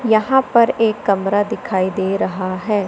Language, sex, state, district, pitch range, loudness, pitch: Hindi, female, Madhya Pradesh, Katni, 190-225 Hz, -17 LUFS, 205 Hz